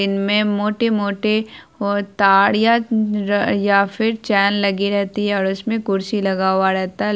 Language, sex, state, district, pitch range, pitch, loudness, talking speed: Hindi, female, Bihar, Araria, 195-215 Hz, 205 Hz, -18 LUFS, 165 wpm